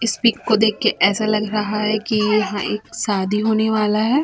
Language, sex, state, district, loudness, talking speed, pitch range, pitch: Hindi, female, Chhattisgarh, Raipur, -18 LUFS, 225 wpm, 210-220 Hz, 215 Hz